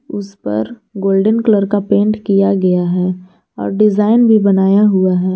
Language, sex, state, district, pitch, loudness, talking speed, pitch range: Hindi, female, Jharkhand, Garhwa, 195 Hz, -13 LUFS, 170 wpm, 185-210 Hz